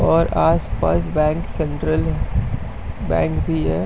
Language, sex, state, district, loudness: Hindi, male, Uttar Pradesh, Jyotiba Phule Nagar, -20 LUFS